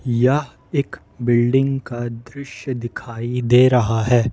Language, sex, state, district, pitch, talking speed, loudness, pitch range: Hindi, male, Jharkhand, Ranchi, 120 Hz, 125 wpm, -19 LUFS, 120-130 Hz